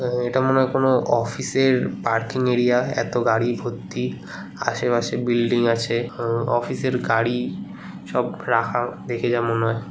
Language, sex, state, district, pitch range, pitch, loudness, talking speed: Bengali, male, West Bengal, Kolkata, 115-125 Hz, 120 Hz, -22 LUFS, 145 wpm